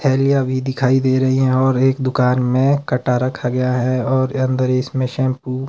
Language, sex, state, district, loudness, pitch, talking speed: Hindi, male, Himachal Pradesh, Shimla, -17 LUFS, 130 Hz, 200 wpm